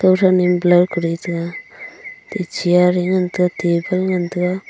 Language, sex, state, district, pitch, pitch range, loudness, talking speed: Wancho, female, Arunachal Pradesh, Longding, 180 Hz, 175-185 Hz, -17 LUFS, 180 wpm